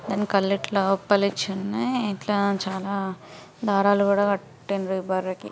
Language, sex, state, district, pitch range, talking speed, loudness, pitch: Telugu, female, Andhra Pradesh, Srikakulam, 190-200 Hz, 130 wpm, -24 LUFS, 200 Hz